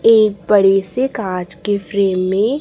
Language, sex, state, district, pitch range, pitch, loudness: Hindi, male, Chhattisgarh, Raipur, 190-220 Hz, 200 Hz, -16 LUFS